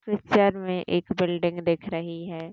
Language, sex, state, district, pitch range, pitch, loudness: Hindi, female, Maharashtra, Chandrapur, 170-195 Hz, 175 Hz, -26 LUFS